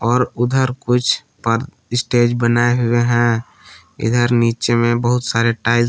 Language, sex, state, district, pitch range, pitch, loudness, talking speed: Hindi, male, Jharkhand, Palamu, 115-120 Hz, 120 Hz, -17 LUFS, 155 wpm